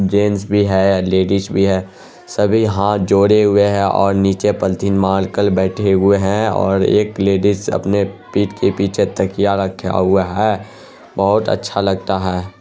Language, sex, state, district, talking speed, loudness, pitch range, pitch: Hindi, male, Bihar, Araria, 155 wpm, -15 LUFS, 95-100 Hz, 100 Hz